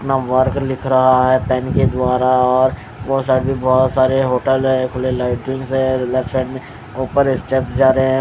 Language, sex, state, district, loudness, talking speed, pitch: Hindi, male, Odisha, Khordha, -16 LUFS, 190 wpm, 130 Hz